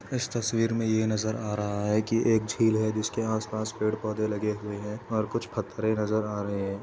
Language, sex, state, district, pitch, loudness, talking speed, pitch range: Hindi, male, Uttar Pradesh, Etah, 110 Hz, -28 LUFS, 220 wpm, 105-110 Hz